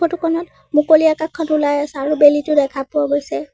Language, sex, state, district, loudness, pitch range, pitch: Assamese, female, Assam, Sonitpur, -16 LUFS, 290-315 Hz, 300 Hz